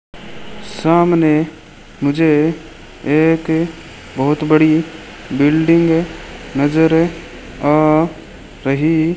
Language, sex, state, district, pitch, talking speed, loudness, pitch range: Hindi, male, Rajasthan, Bikaner, 160 Hz, 65 wpm, -15 LUFS, 150-165 Hz